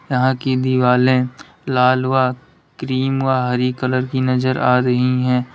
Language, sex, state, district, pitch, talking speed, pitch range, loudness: Hindi, male, Uttar Pradesh, Lalitpur, 130 Hz, 150 wpm, 125-130 Hz, -17 LUFS